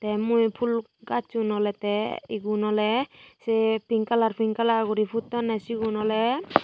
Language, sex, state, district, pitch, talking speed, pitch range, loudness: Chakma, female, Tripura, Unakoti, 225 Hz, 155 wpm, 215-230 Hz, -25 LUFS